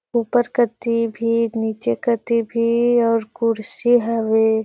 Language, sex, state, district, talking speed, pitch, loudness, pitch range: Surgujia, female, Chhattisgarh, Sarguja, 115 wpm, 230 Hz, -19 LUFS, 220-235 Hz